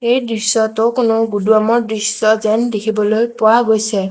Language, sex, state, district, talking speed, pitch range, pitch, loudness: Assamese, female, Assam, Sonitpur, 130 wpm, 215-230 Hz, 220 Hz, -14 LUFS